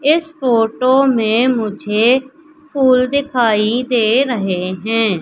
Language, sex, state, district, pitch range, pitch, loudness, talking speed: Hindi, female, Madhya Pradesh, Katni, 220-265 Hz, 245 Hz, -15 LUFS, 105 wpm